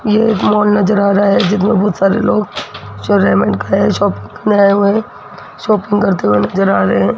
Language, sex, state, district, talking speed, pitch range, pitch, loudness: Hindi, female, Rajasthan, Jaipur, 190 wpm, 195-210 Hz, 205 Hz, -13 LUFS